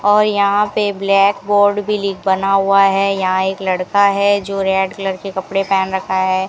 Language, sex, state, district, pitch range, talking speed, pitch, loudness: Hindi, female, Rajasthan, Bikaner, 190-200 Hz, 205 wpm, 195 Hz, -15 LUFS